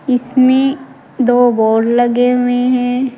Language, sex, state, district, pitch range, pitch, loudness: Hindi, female, Uttar Pradesh, Saharanpur, 245-255 Hz, 245 Hz, -13 LUFS